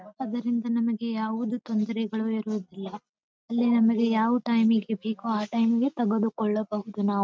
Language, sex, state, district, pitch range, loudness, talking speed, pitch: Kannada, female, Karnataka, Bijapur, 215-235 Hz, -26 LUFS, 135 wpm, 225 Hz